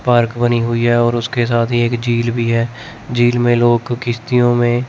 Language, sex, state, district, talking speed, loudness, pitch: Hindi, male, Chandigarh, Chandigarh, 210 wpm, -15 LUFS, 120 Hz